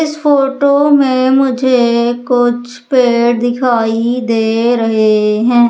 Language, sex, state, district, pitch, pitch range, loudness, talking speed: Hindi, female, Madhya Pradesh, Umaria, 245 Hz, 235-260 Hz, -12 LUFS, 105 wpm